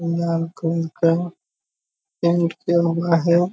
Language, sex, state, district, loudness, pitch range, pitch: Hindi, male, Bihar, Purnia, -20 LUFS, 165-170 Hz, 170 Hz